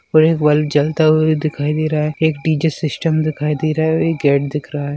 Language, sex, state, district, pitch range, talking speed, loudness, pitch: Hindi, male, Bihar, Madhepura, 150-160 Hz, 255 wpm, -16 LUFS, 155 Hz